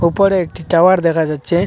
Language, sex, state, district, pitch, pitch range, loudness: Bengali, male, Assam, Hailakandi, 170 Hz, 165-185 Hz, -14 LUFS